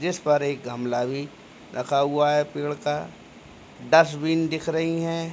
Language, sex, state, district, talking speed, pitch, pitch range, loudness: Hindi, male, Bihar, Begusarai, 145 wpm, 150 Hz, 140-165 Hz, -24 LUFS